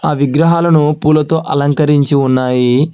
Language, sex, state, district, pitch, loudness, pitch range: Telugu, male, Telangana, Hyderabad, 150 Hz, -12 LUFS, 140-155 Hz